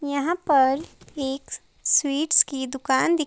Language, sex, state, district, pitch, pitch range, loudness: Hindi, female, Himachal Pradesh, Shimla, 280 Hz, 270-310 Hz, -22 LUFS